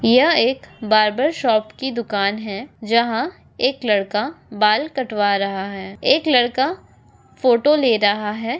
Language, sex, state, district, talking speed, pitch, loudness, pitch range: Hindi, female, Andhra Pradesh, Anantapur, 140 wpm, 225 Hz, -19 LUFS, 210-260 Hz